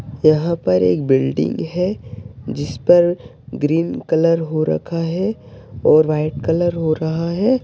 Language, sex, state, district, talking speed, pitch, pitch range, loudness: Hindi, male, Bihar, Bhagalpur, 140 wpm, 155 Hz, 120-170 Hz, -18 LUFS